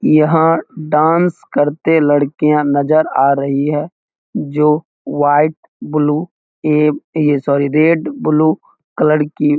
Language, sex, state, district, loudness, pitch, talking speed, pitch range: Hindi, male, Bihar, East Champaran, -14 LUFS, 150 Hz, 120 wpm, 145-155 Hz